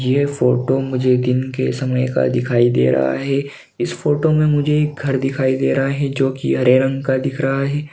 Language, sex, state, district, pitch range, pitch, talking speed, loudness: Hindi, male, Jharkhand, Sahebganj, 130-140 Hz, 135 Hz, 210 wpm, -17 LUFS